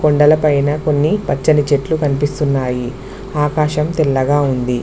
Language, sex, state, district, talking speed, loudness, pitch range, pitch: Telugu, female, Telangana, Mahabubabad, 110 wpm, -15 LUFS, 140-150 Hz, 145 Hz